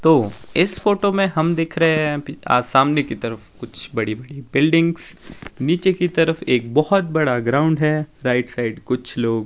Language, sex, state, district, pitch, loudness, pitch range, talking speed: Hindi, male, Himachal Pradesh, Shimla, 150 Hz, -19 LUFS, 125-165 Hz, 170 wpm